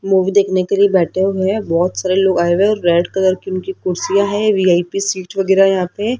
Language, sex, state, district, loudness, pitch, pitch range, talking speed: Hindi, female, Rajasthan, Jaipur, -15 LUFS, 190 Hz, 185-195 Hz, 240 wpm